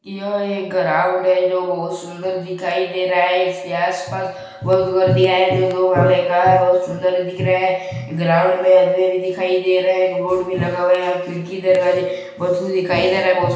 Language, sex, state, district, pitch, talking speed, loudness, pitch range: Hindi, male, Chhattisgarh, Balrampur, 185 Hz, 175 wpm, -17 LUFS, 180-185 Hz